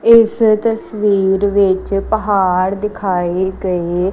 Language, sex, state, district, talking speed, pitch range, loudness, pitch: Punjabi, female, Punjab, Kapurthala, 85 wpm, 185-215 Hz, -15 LUFS, 195 Hz